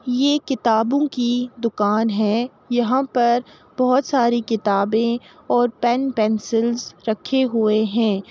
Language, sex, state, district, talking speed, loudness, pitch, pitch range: Hindi, female, Uttar Pradesh, Jalaun, 130 wpm, -20 LUFS, 235 Hz, 220-255 Hz